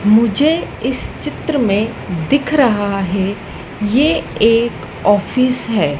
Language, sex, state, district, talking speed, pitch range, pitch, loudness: Hindi, female, Madhya Pradesh, Dhar, 110 wpm, 200-255 Hz, 215 Hz, -16 LUFS